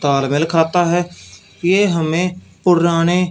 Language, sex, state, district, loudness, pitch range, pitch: Hindi, male, Punjab, Fazilka, -16 LUFS, 150-180 Hz, 170 Hz